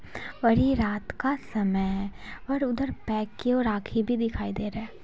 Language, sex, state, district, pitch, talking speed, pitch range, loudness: Hindi, female, Bihar, Sitamarhi, 225 Hz, 200 wpm, 210-250 Hz, -28 LUFS